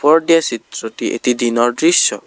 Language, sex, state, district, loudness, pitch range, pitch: Assamese, male, Assam, Kamrup Metropolitan, -15 LUFS, 120-165 Hz, 125 Hz